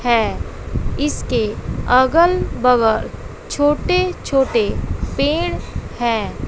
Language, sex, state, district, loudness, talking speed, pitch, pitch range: Hindi, female, Bihar, West Champaran, -18 LUFS, 75 wpm, 260 Hz, 235-300 Hz